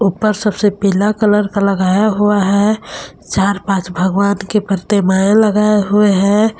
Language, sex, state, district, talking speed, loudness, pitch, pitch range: Hindi, female, Jharkhand, Palamu, 145 wpm, -14 LUFS, 200 Hz, 195-210 Hz